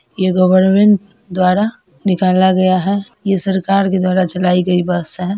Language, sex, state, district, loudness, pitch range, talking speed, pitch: Hindi, female, Bihar, Purnia, -14 LUFS, 185-195 Hz, 155 wpm, 185 Hz